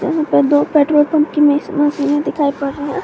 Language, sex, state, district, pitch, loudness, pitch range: Hindi, female, Jharkhand, Garhwa, 295 Hz, -15 LUFS, 285-305 Hz